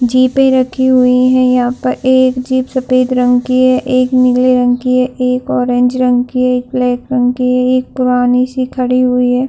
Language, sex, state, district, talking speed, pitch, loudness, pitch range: Hindi, female, Chhattisgarh, Bilaspur, 210 wpm, 255 Hz, -12 LUFS, 250-255 Hz